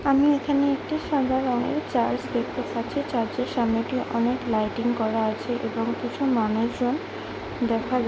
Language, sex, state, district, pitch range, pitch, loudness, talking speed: Bengali, female, West Bengal, Kolkata, 230-275 Hz, 245 Hz, -25 LUFS, 155 wpm